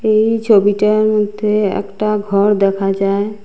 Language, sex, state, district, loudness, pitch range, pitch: Bengali, female, Assam, Hailakandi, -14 LUFS, 200-215 Hz, 210 Hz